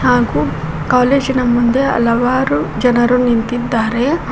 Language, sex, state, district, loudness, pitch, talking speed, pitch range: Kannada, female, Karnataka, Koppal, -14 LUFS, 240 Hz, 85 wpm, 225-250 Hz